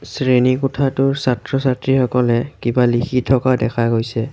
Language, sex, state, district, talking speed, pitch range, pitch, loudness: Assamese, male, Assam, Kamrup Metropolitan, 125 wpm, 120-135 Hz, 125 Hz, -17 LUFS